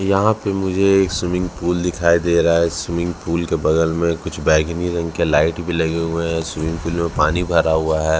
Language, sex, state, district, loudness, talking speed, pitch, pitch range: Hindi, male, Chhattisgarh, Raipur, -18 LUFS, 225 wpm, 85 Hz, 80-90 Hz